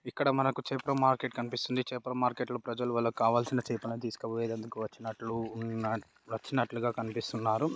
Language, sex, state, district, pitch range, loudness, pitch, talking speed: Telugu, male, Andhra Pradesh, Srikakulam, 115-125 Hz, -33 LUFS, 120 Hz, 125 wpm